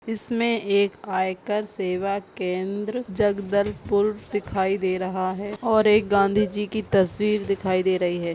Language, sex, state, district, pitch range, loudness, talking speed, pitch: Hindi, female, Chhattisgarh, Bastar, 190-210 Hz, -24 LUFS, 150 wpm, 200 Hz